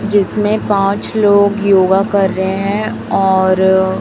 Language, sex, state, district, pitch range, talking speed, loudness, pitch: Hindi, female, Chhattisgarh, Raipur, 190-205 Hz, 120 wpm, -13 LUFS, 195 Hz